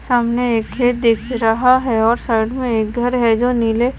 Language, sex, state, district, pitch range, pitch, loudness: Hindi, female, Maharashtra, Washim, 225-245 Hz, 240 Hz, -16 LUFS